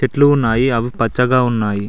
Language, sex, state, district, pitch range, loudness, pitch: Telugu, male, Telangana, Mahabubabad, 115-130 Hz, -15 LUFS, 125 Hz